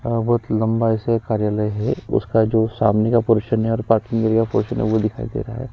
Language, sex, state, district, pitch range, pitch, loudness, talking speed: Hindi, female, Chhattisgarh, Sukma, 110-115 Hz, 115 Hz, -19 LUFS, 220 wpm